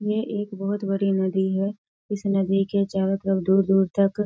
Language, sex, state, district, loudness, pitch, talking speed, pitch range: Hindi, female, Bihar, East Champaran, -23 LUFS, 195 Hz, 225 wpm, 195-205 Hz